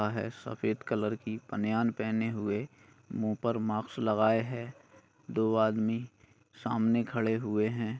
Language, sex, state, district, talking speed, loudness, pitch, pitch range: Hindi, male, Bihar, Bhagalpur, 135 wpm, -32 LUFS, 110 Hz, 110-115 Hz